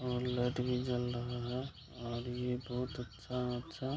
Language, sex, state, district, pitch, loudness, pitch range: Hindi, male, Bihar, Kishanganj, 125 Hz, -38 LUFS, 120-125 Hz